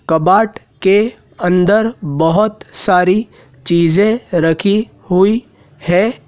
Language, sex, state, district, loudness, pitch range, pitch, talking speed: Hindi, male, Madhya Pradesh, Dhar, -14 LUFS, 165-210 Hz, 185 Hz, 85 wpm